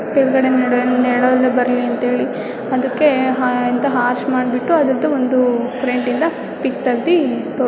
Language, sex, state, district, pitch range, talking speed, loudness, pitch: Kannada, female, Karnataka, Dakshina Kannada, 250-265 Hz, 110 wpm, -16 LUFS, 255 Hz